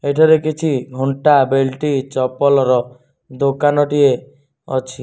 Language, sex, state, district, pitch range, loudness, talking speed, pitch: Odia, male, Odisha, Nuapada, 130-145 Hz, -16 LUFS, 105 wpm, 140 Hz